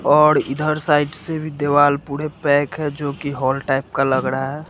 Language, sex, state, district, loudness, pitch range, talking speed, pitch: Hindi, male, Bihar, West Champaran, -19 LUFS, 140-150 Hz, 215 wpm, 145 Hz